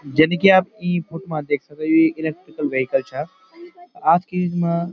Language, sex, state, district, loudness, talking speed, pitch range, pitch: Garhwali, male, Uttarakhand, Uttarkashi, -20 LUFS, 205 wpm, 155-185 Hz, 170 Hz